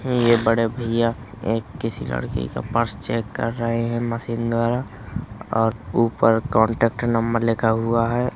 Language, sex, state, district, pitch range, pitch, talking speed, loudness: Hindi, male, Uttar Pradesh, Hamirpur, 110-115 Hz, 115 Hz, 150 wpm, -22 LUFS